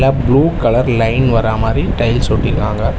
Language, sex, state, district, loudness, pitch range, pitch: Tamil, male, Tamil Nadu, Chennai, -14 LUFS, 110-130 Hz, 120 Hz